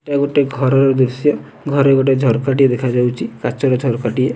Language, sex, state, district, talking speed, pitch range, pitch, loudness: Odia, male, Odisha, Nuapada, 165 wpm, 125-140 Hz, 135 Hz, -16 LUFS